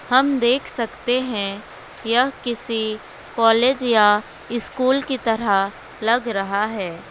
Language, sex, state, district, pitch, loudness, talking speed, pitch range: Hindi, female, West Bengal, Alipurduar, 230 Hz, -20 LUFS, 120 wpm, 210-250 Hz